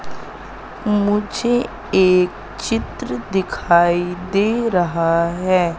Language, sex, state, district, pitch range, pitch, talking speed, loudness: Hindi, female, Madhya Pradesh, Katni, 175-205 Hz, 185 Hz, 75 wpm, -18 LUFS